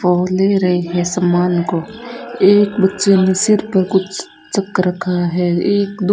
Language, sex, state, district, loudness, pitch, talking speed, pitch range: Hindi, female, Rajasthan, Bikaner, -15 LUFS, 185 Hz, 175 wpm, 180-200 Hz